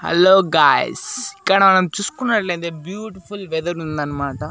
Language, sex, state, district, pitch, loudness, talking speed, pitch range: Telugu, male, Andhra Pradesh, Annamaya, 185 Hz, -17 LUFS, 105 wpm, 160-205 Hz